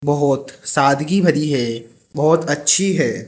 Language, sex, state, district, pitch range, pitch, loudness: Hindi, male, Rajasthan, Jaipur, 135-160 Hz, 145 Hz, -17 LUFS